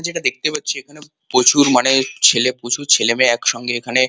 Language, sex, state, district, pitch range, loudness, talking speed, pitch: Bengali, male, West Bengal, Kolkata, 120-150 Hz, -15 LUFS, 145 wpm, 130 Hz